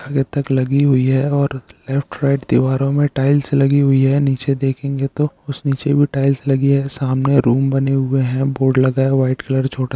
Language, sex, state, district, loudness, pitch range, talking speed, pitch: Hindi, male, Bihar, Araria, -17 LUFS, 130-140 Hz, 210 wpm, 135 Hz